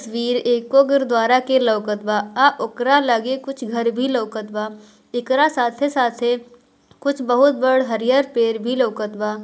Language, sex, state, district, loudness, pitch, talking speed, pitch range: Bhojpuri, female, Bihar, Gopalganj, -19 LUFS, 245 Hz, 160 wpm, 225-260 Hz